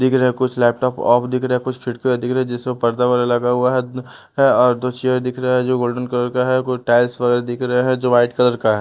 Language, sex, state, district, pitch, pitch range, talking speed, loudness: Hindi, male, Bihar, West Champaran, 125 Hz, 120-125 Hz, 285 wpm, -17 LUFS